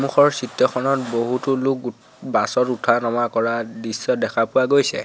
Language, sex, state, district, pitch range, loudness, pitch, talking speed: Assamese, male, Assam, Sonitpur, 115-135 Hz, -20 LUFS, 125 Hz, 155 wpm